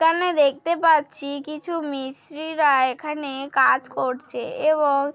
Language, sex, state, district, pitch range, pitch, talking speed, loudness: Bengali, female, West Bengal, Dakshin Dinajpur, 275-320 Hz, 295 Hz, 105 wpm, -22 LUFS